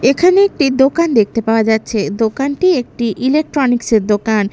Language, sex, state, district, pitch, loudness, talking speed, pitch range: Bengali, female, Bihar, Katihar, 245 Hz, -14 LUFS, 145 wpm, 220-285 Hz